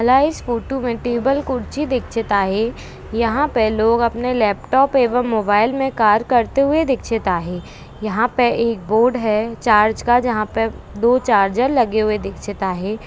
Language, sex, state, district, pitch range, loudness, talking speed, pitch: Hindi, female, Maharashtra, Pune, 215-250 Hz, -18 LUFS, 165 wpm, 230 Hz